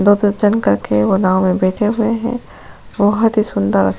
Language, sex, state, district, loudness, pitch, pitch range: Hindi, female, Goa, North and South Goa, -15 LUFS, 205 Hz, 185-215 Hz